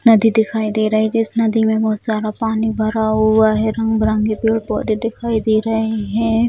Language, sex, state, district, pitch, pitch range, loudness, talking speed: Hindi, female, Bihar, Bhagalpur, 220 Hz, 215-225 Hz, -17 LUFS, 185 wpm